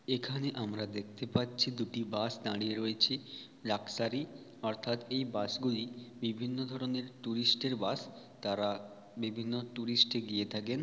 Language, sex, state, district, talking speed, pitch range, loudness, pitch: Bengali, male, West Bengal, Paschim Medinipur, 135 wpm, 110-125 Hz, -35 LUFS, 120 Hz